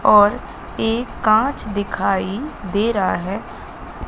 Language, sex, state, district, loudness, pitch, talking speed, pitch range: Hindi, female, Madhya Pradesh, Katni, -19 LUFS, 210 Hz, 105 wpm, 195-225 Hz